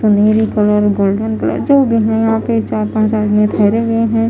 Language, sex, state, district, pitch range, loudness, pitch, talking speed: Hindi, female, Haryana, Jhajjar, 210-225 Hz, -13 LUFS, 220 Hz, 180 wpm